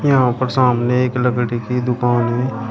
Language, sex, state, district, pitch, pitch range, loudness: Hindi, male, Uttar Pradesh, Shamli, 125 Hz, 120-125 Hz, -17 LUFS